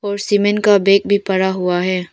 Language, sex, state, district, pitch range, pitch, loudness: Hindi, female, Arunachal Pradesh, Papum Pare, 185-205 Hz, 200 Hz, -15 LUFS